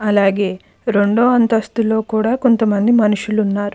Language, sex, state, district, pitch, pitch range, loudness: Telugu, female, Andhra Pradesh, Anantapur, 215 Hz, 205-230 Hz, -16 LUFS